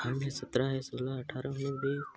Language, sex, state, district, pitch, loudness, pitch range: Hindi, male, Chhattisgarh, Sarguja, 135 Hz, -35 LUFS, 130-140 Hz